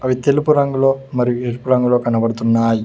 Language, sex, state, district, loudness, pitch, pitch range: Telugu, male, Telangana, Mahabubabad, -16 LUFS, 125 Hz, 115-135 Hz